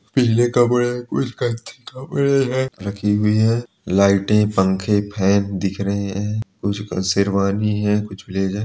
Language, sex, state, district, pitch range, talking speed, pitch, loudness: Hindi, male, Bihar, Bhagalpur, 100-120 Hz, 145 wpm, 105 Hz, -19 LUFS